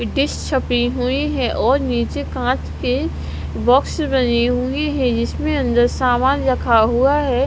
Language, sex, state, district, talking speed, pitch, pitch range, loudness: Hindi, female, Punjab, Kapurthala, 145 wpm, 250 Hz, 235-270 Hz, -18 LUFS